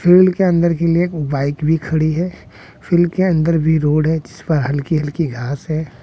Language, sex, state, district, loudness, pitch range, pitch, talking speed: Hindi, male, Bihar, West Champaran, -17 LUFS, 150-170 Hz, 160 Hz, 200 wpm